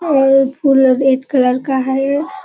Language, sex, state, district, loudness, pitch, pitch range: Hindi, female, Bihar, Kishanganj, -13 LUFS, 270 Hz, 265-280 Hz